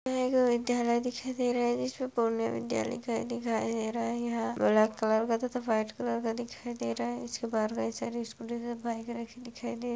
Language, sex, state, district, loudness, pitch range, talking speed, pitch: Hindi, female, Bihar, Purnia, -31 LUFS, 220-240 Hz, 50 wpm, 235 Hz